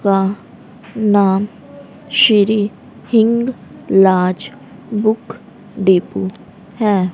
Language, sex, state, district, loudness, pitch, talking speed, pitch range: Hindi, female, Haryana, Rohtak, -15 LUFS, 210 Hz, 65 wpm, 195-225 Hz